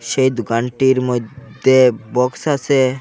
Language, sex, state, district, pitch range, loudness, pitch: Bengali, male, Assam, Hailakandi, 125-130 Hz, -16 LUFS, 130 Hz